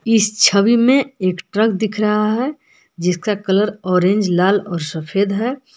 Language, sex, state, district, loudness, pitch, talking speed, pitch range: Hindi, female, Jharkhand, Palamu, -17 LUFS, 210 Hz, 155 wpm, 185-225 Hz